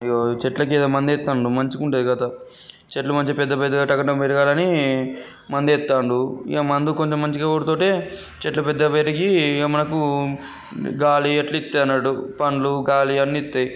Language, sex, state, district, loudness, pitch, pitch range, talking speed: Telugu, male, Telangana, Karimnagar, -20 LUFS, 145 Hz, 135-150 Hz, 125 wpm